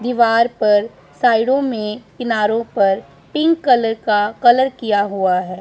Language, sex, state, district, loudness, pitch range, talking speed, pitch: Hindi, male, Punjab, Pathankot, -16 LUFS, 210-245 Hz, 140 wpm, 225 Hz